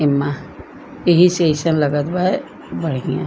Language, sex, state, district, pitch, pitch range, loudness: Bhojpuri, female, Uttar Pradesh, Gorakhpur, 155 Hz, 145-175 Hz, -17 LUFS